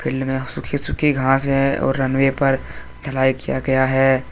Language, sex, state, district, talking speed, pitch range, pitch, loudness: Hindi, male, Jharkhand, Deoghar, 195 wpm, 130-135 Hz, 135 Hz, -19 LUFS